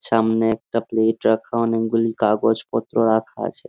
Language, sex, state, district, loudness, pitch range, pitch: Bengali, male, West Bengal, Jhargram, -20 LUFS, 110-115 Hz, 115 Hz